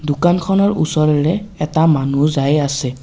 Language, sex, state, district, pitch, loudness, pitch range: Assamese, male, Assam, Kamrup Metropolitan, 155 Hz, -16 LUFS, 145-175 Hz